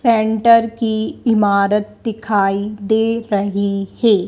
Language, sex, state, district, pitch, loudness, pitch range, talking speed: Hindi, female, Madhya Pradesh, Dhar, 215 Hz, -16 LUFS, 200-225 Hz, 100 wpm